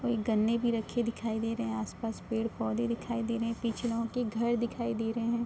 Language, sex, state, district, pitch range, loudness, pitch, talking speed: Hindi, female, Uttar Pradesh, Ghazipur, 225-235 Hz, -32 LUFS, 230 Hz, 240 wpm